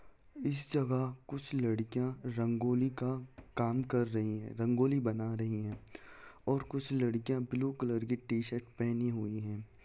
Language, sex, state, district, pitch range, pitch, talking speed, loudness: Hindi, male, Bihar, Jahanabad, 115-130 Hz, 120 Hz, 150 wpm, -35 LUFS